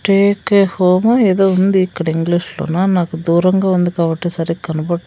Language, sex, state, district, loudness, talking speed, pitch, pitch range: Telugu, female, Andhra Pradesh, Sri Satya Sai, -15 LUFS, 155 wpm, 180 Hz, 170-195 Hz